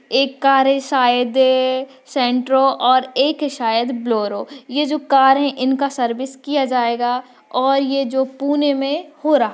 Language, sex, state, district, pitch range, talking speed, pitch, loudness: Hindi, female, Maharashtra, Pune, 250-275 Hz, 155 wpm, 265 Hz, -17 LUFS